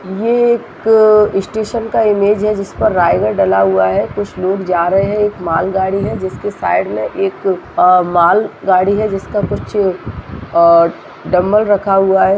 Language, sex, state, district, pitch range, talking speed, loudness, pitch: Hindi, female, Chhattisgarh, Raigarh, 185-210 Hz, 170 wpm, -13 LUFS, 195 Hz